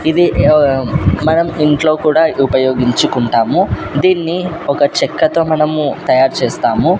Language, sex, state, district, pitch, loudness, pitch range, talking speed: Telugu, male, Andhra Pradesh, Sri Satya Sai, 150 Hz, -13 LUFS, 130-160 Hz, 105 wpm